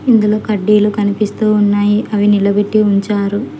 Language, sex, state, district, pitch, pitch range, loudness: Telugu, female, Telangana, Hyderabad, 210 Hz, 205-210 Hz, -13 LUFS